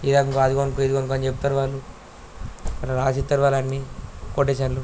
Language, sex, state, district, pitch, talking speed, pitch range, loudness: Telugu, male, Andhra Pradesh, Krishna, 135 Hz, 185 wpm, 130-140 Hz, -22 LUFS